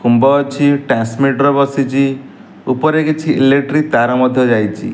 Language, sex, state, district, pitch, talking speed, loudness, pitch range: Odia, male, Odisha, Nuapada, 135 Hz, 135 wpm, -13 LUFS, 125-140 Hz